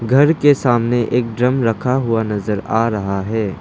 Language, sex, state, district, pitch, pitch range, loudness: Hindi, male, Arunachal Pradesh, Lower Dibang Valley, 115 Hz, 110-125 Hz, -17 LUFS